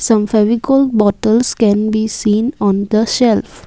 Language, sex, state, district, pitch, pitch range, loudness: English, female, Assam, Kamrup Metropolitan, 220 Hz, 210-230 Hz, -14 LUFS